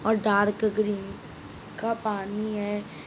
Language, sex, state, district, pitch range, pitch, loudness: Hindi, male, Bihar, Madhepura, 200-215 Hz, 210 Hz, -27 LUFS